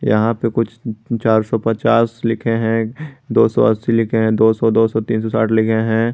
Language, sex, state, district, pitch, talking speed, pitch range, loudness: Hindi, male, Jharkhand, Garhwa, 115 Hz, 215 wpm, 110-115 Hz, -16 LUFS